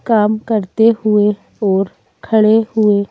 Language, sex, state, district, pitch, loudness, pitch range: Hindi, female, Madhya Pradesh, Bhopal, 215 Hz, -14 LUFS, 205-220 Hz